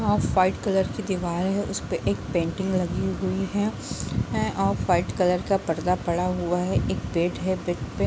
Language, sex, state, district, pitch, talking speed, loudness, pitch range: Hindi, female, Bihar, Gopalganj, 180 Hz, 170 wpm, -25 LUFS, 175-190 Hz